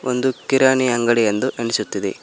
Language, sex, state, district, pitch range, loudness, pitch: Kannada, male, Karnataka, Koppal, 115-130 Hz, -18 LUFS, 125 Hz